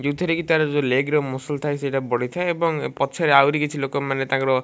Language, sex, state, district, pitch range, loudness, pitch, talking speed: Odia, male, Odisha, Malkangiri, 135-155 Hz, -21 LUFS, 145 Hz, 235 wpm